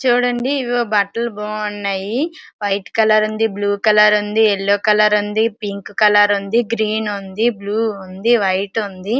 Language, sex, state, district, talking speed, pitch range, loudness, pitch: Telugu, female, Andhra Pradesh, Srikakulam, 145 wpm, 205-230 Hz, -17 LUFS, 210 Hz